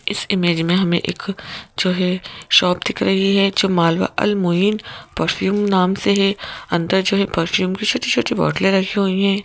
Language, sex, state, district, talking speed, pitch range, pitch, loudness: Hindi, female, Madhya Pradesh, Bhopal, 180 wpm, 180-200 Hz, 195 Hz, -18 LUFS